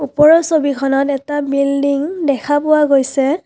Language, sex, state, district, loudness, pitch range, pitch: Assamese, female, Assam, Kamrup Metropolitan, -14 LUFS, 275-300 Hz, 285 Hz